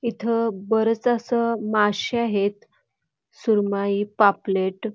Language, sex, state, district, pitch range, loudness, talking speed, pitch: Marathi, female, Karnataka, Belgaum, 200-230 Hz, -22 LUFS, 85 wpm, 215 Hz